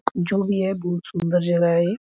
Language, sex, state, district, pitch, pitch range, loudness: Hindi, male, Bihar, Araria, 175 Hz, 175-195 Hz, -22 LUFS